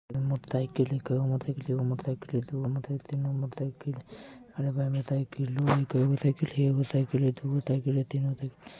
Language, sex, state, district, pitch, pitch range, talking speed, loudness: Bajjika, male, Bihar, Vaishali, 135 Hz, 130-140 Hz, 95 wpm, -30 LUFS